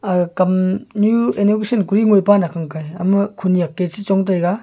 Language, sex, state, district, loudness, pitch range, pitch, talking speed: Wancho, male, Arunachal Pradesh, Longding, -17 LUFS, 180-205 Hz, 195 Hz, 155 wpm